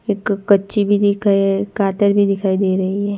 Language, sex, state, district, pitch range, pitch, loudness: Hindi, female, Gujarat, Gandhinagar, 195-205 Hz, 200 Hz, -16 LUFS